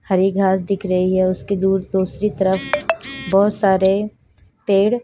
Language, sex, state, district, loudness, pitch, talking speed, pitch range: Hindi, female, Bihar, Katihar, -17 LUFS, 195 Hz, 145 wpm, 190-205 Hz